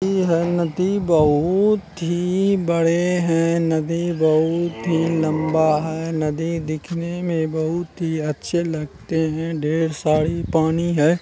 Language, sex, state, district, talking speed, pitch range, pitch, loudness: Hindi, male, Bihar, Jamui, 130 wpm, 160-175 Hz, 165 Hz, -20 LUFS